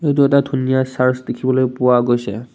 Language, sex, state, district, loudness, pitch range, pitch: Assamese, male, Assam, Kamrup Metropolitan, -16 LUFS, 125-130 Hz, 130 Hz